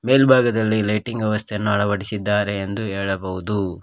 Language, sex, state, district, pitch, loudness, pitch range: Kannada, male, Karnataka, Koppal, 105 Hz, -20 LUFS, 100-110 Hz